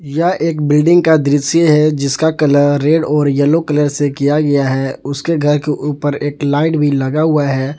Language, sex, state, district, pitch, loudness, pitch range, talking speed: Hindi, male, Jharkhand, Palamu, 145 Hz, -13 LUFS, 145-155 Hz, 200 wpm